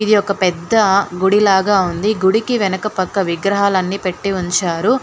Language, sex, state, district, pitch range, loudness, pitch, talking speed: Telugu, female, Telangana, Hyderabad, 185-205 Hz, -16 LUFS, 195 Hz, 145 wpm